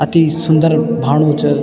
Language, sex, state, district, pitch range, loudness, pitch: Garhwali, male, Uttarakhand, Tehri Garhwal, 145-160 Hz, -13 LUFS, 155 Hz